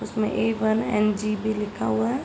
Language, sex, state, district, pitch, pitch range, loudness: Hindi, female, Uttar Pradesh, Hamirpur, 215 Hz, 210-220 Hz, -24 LUFS